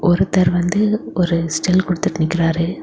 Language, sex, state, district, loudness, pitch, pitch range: Tamil, female, Tamil Nadu, Kanyakumari, -17 LUFS, 175 Hz, 170-185 Hz